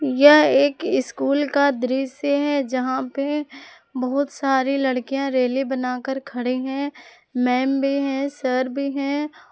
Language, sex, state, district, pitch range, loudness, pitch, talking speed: Hindi, female, Jharkhand, Palamu, 255-285 Hz, -21 LUFS, 270 Hz, 130 wpm